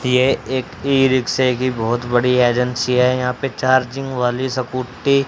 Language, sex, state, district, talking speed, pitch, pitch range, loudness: Hindi, male, Haryana, Charkhi Dadri, 160 wpm, 125 Hz, 125-130 Hz, -18 LUFS